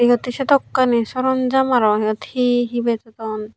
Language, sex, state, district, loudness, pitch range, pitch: Chakma, female, Tripura, Unakoti, -18 LUFS, 225-255 Hz, 245 Hz